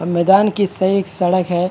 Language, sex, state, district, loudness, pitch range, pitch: Hindi, male, Maharashtra, Chandrapur, -16 LUFS, 180-195 Hz, 185 Hz